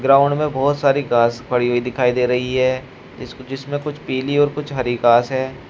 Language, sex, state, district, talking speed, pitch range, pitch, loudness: Hindi, male, Uttar Pradesh, Shamli, 200 wpm, 125-140 Hz, 130 Hz, -18 LUFS